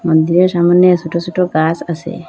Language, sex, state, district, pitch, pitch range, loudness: Bengali, female, Assam, Hailakandi, 170 Hz, 165-180 Hz, -13 LUFS